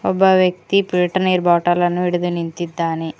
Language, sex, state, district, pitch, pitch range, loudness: Kannada, female, Karnataka, Koppal, 175 Hz, 175-185 Hz, -17 LUFS